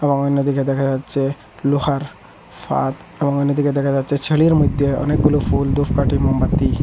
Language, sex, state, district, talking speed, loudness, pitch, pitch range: Bengali, male, Assam, Hailakandi, 140 wpm, -18 LUFS, 140 Hz, 135-145 Hz